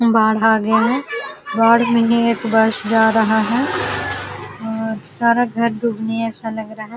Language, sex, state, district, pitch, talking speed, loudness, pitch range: Hindi, female, Uttar Pradesh, Jalaun, 225 Hz, 170 wpm, -17 LUFS, 220-235 Hz